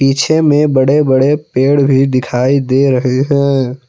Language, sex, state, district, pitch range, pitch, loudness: Hindi, male, Jharkhand, Palamu, 130-145 Hz, 135 Hz, -11 LUFS